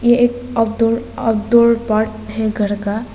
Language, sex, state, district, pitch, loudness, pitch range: Hindi, female, Arunachal Pradesh, Papum Pare, 225 Hz, -16 LUFS, 215-235 Hz